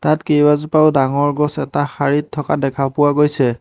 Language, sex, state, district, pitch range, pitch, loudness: Assamese, male, Assam, Hailakandi, 140-150 Hz, 145 Hz, -16 LUFS